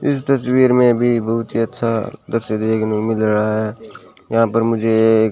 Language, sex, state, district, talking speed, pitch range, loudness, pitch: Hindi, male, Rajasthan, Bikaner, 205 wpm, 110-120 Hz, -17 LUFS, 115 Hz